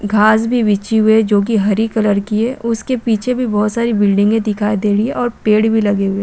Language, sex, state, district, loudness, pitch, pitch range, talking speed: Hindi, female, Chhattisgarh, Balrampur, -15 LUFS, 215 Hz, 205-230 Hz, 240 wpm